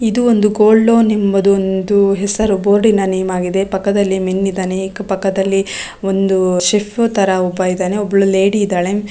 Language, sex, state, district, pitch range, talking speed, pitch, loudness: Kannada, female, Karnataka, Raichur, 190-205 Hz, 140 wpm, 195 Hz, -14 LUFS